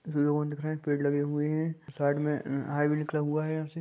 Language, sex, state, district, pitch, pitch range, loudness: Magahi, male, Bihar, Gaya, 150 Hz, 145-155 Hz, -30 LUFS